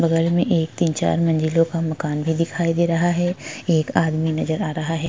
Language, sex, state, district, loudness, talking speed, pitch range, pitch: Hindi, female, Maharashtra, Chandrapur, -21 LUFS, 225 wpm, 160-165 Hz, 165 Hz